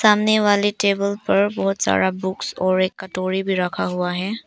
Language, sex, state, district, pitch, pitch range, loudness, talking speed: Hindi, female, Arunachal Pradesh, Papum Pare, 195 Hz, 185-205 Hz, -20 LUFS, 190 wpm